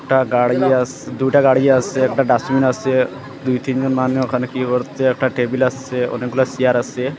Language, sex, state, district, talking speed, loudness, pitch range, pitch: Bengali, male, Assam, Hailakandi, 175 wpm, -17 LUFS, 125-130 Hz, 130 Hz